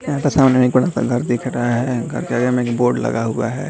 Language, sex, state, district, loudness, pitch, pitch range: Hindi, male, Uttar Pradesh, Jalaun, -18 LUFS, 125 Hz, 120-130 Hz